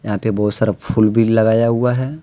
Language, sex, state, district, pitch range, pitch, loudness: Hindi, male, Jharkhand, Deoghar, 105-115 Hz, 110 Hz, -16 LUFS